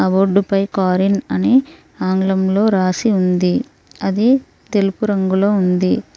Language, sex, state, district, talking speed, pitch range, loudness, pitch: Telugu, female, Telangana, Mahabubabad, 125 wpm, 190-205 Hz, -16 LUFS, 195 Hz